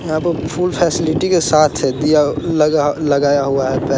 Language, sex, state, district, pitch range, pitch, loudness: Hindi, male, Bihar, Sitamarhi, 140-165 Hz, 155 Hz, -15 LUFS